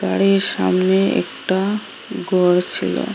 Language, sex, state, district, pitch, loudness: Bengali, female, Assam, Hailakandi, 180 Hz, -16 LUFS